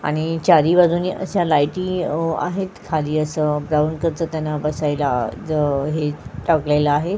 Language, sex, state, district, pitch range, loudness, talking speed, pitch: Marathi, female, Goa, North and South Goa, 150-170 Hz, -20 LUFS, 140 wpm, 155 Hz